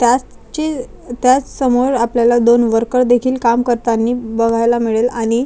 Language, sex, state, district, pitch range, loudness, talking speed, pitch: Marathi, female, Maharashtra, Chandrapur, 235-250 Hz, -15 LUFS, 130 wpm, 240 Hz